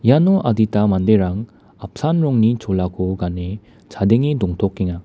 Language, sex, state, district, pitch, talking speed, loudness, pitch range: Garo, male, Meghalaya, West Garo Hills, 105 Hz, 105 wpm, -18 LUFS, 95-115 Hz